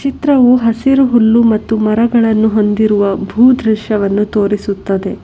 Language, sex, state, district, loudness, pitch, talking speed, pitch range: Kannada, female, Karnataka, Bangalore, -12 LUFS, 220 Hz, 105 wpm, 205-235 Hz